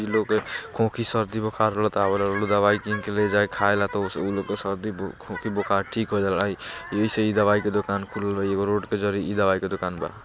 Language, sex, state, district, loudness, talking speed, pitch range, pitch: Bhojpuri, male, Bihar, East Champaran, -24 LUFS, 235 wpm, 100-105 Hz, 105 Hz